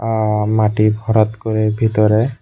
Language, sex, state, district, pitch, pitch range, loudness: Bengali, male, Tripura, West Tripura, 110 Hz, 105-110 Hz, -16 LUFS